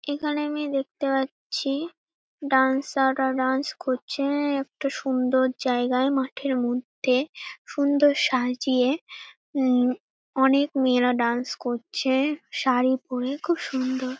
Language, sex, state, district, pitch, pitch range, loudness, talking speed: Bengali, female, West Bengal, North 24 Parganas, 265 Hz, 255-285 Hz, -24 LUFS, 100 wpm